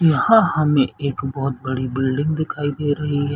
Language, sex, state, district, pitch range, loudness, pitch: Hindi, male, Chhattisgarh, Bilaspur, 135-150 Hz, -20 LUFS, 145 Hz